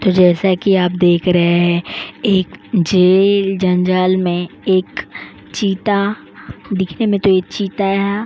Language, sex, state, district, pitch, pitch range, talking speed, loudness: Hindi, female, Goa, North and South Goa, 190 Hz, 180-200 Hz, 140 wpm, -15 LUFS